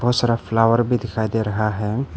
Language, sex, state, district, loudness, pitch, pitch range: Hindi, male, Arunachal Pradesh, Papum Pare, -20 LUFS, 115 Hz, 110-120 Hz